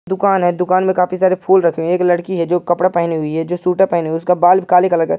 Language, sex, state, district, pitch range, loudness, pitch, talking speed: Hindi, male, Uttar Pradesh, Jyotiba Phule Nagar, 170-185 Hz, -15 LUFS, 180 Hz, 310 wpm